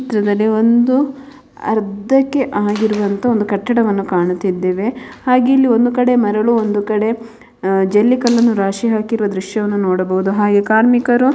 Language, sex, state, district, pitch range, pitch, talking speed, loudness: Kannada, female, Karnataka, Mysore, 205-245 Hz, 220 Hz, 120 wpm, -15 LUFS